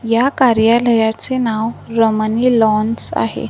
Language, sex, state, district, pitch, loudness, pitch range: Marathi, female, Maharashtra, Gondia, 230 Hz, -15 LUFS, 220-240 Hz